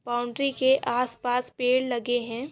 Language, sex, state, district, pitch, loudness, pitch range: Hindi, female, Chhattisgarh, Korba, 250 Hz, -26 LUFS, 240-260 Hz